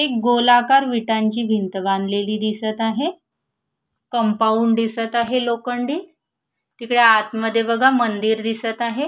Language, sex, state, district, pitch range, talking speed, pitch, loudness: Marathi, female, Maharashtra, Solapur, 220-245 Hz, 110 wpm, 230 Hz, -19 LUFS